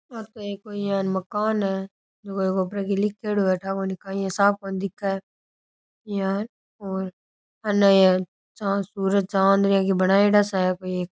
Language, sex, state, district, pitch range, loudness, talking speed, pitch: Rajasthani, male, Rajasthan, Nagaur, 190-205 Hz, -23 LUFS, 165 wpm, 195 Hz